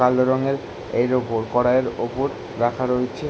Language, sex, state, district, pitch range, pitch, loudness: Bengali, male, West Bengal, Jalpaiguri, 120-130 Hz, 125 Hz, -22 LUFS